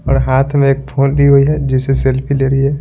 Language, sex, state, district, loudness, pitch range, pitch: Hindi, male, Bihar, Patna, -13 LUFS, 135-140 Hz, 135 Hz